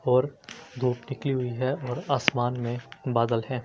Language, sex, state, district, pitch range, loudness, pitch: Hindi, male, Delhi, New Delhi, 120-135 Hz, -28 LUFS, 125 Hz